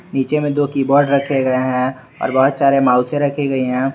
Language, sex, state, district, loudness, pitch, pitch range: Hindi, male, Jharkhand, Garhwa, -16 LUFS, 135 Hz, 130-145 Hz